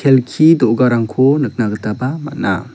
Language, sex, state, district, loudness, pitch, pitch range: Garo, male, Meghalaya, South Garo Hills, -14 LUFS, 125 Hz, 115-140 Hz